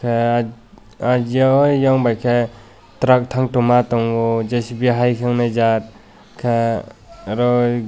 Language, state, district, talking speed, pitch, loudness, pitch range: Kokborok, Tripura, West Tripura, 120 wpm, 120 Hz, -17 LUFS, 115-125 Hz